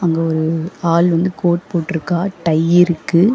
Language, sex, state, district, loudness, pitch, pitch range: Tamil, female, Tamil Nadu, Chennai, -16 LUFS, 170 Hz, 165-175 Hz